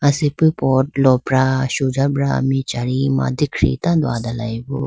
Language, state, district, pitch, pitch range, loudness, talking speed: Idu Mishmi, Arunachal Pradesh, Lower Dibang Valley, 135 Hz, 130-140 Hz, -18 LUFS, 100 wpm